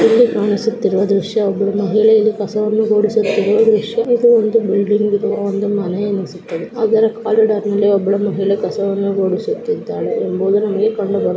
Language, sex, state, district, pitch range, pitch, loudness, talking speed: Kannada, female, Karnataka, Dakshina Kannada, 200-220 Hz, 210 Hz, -15 LUFS, 130 wpm